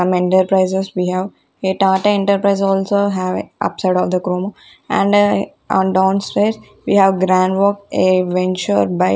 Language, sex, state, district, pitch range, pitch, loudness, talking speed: English, female, Punjab, Kapurthala, 185-200 Hz, 190 Hz, -16 LUFS, 135 wpm